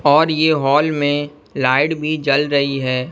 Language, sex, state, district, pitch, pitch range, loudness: Hindi, male, Bihar, West Champaran, 145 Hz, 140-155 Hz, -16 LUFS